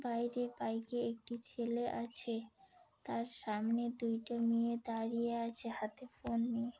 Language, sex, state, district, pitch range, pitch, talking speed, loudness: Bengali, female, West Bengal, Dakshin Dinajpur, 230-240 Hz, 235 Hz, 125 wpm, -39 LUFS